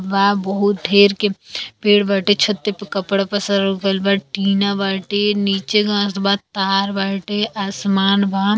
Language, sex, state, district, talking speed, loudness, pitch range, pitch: Bhojpuri, female, Uttar Pradesh, Deoria, 140 wpm, -17 LUFS, 195-205 Hz, 200 Hz